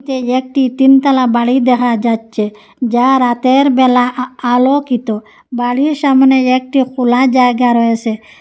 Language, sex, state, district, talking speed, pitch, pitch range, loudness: Bengali, female, Assam, Hailakandi, 115 wpm, 250 Hz, 240-265 Hz, -12 LUFS